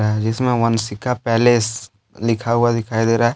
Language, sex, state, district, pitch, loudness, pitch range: Hindi, male, Jharkhand, Deoghar, 115 Hz, -18 LUFS, 110-120 Hz